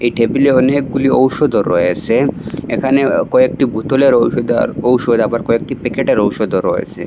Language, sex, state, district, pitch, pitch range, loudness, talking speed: Bengali, male, Assam, Hailakandi, 130 Hz, 120-135 Hz, -14 LUFS, 145 wpm